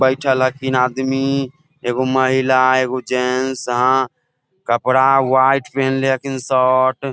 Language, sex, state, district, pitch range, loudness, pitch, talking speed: Maithili, male, Bihar, Samastipur, 130-135 Hz, -17 LUFS, 130 Hz, 125 wpm